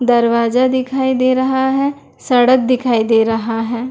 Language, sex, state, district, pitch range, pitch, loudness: Hindi, female, Bihar, Madhepura, 235-260 Hz, 250 Hz, -15 LUFS